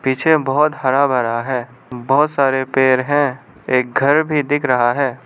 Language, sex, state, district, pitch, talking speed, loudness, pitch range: Hindi, male, Arunachal Pradesh, Lower Dibang Valley, 135 Hz, 170 wpm, -16 LUFS, 130-145 Hz